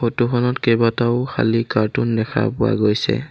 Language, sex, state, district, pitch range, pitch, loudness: Assamese, male, Assam, Sonitpur, 110-125 Hz, 115 Hz, -19 LUFS